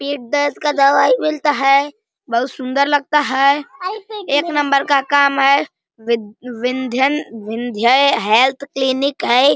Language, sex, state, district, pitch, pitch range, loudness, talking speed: Hindi, male, Uttar Pradesh, Deoria, 275 Hz, 255-290 Hz, -16 LUFS, 130 wpm